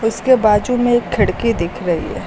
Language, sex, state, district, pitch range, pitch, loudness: Hindi, female, Uttar Pradesh, Lucknow, 175-240 Hz, 225 Hz, -16 LUFS